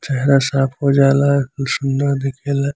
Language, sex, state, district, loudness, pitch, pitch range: Bhojpuri, male, Uttar Pradesh, Gorakhpur, -17 LUFS, 140 Hz, 135-140 Hz